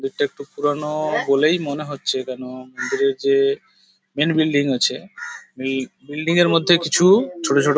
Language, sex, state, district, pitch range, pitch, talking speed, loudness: Bengali, male, West Bengal, Paschim Medinipur, 140-205 Hz, 155 Hz, 160 wpm, -19 LUFS